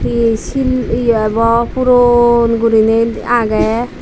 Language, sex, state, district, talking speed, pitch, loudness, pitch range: Chakma, female, Tripura, Dhalai, 105 wpm, 235 Hz, -13 LUFS, 230-240 Hz